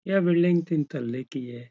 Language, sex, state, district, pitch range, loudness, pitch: Hindi, male, Uttar Pradesh, Etah, 125-175 Hz, -26 LUFS, 150 Hz